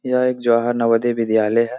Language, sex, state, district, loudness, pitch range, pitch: Hindi, male, Bihar, Supaul, -18 LUFS, 115-125 Hz, 120 Hz